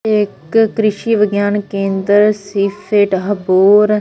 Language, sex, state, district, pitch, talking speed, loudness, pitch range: Punjabi, female, Punjab, Fazilka, 205 Hz, 105 wpm, -14 LUFS, 200-210 Hz